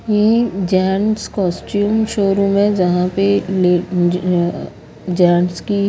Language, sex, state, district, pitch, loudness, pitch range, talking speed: Hindi, female, Haryana, Rohtak, 195 Hz, -16 LUFS, 180-205 Hz, 110 wpm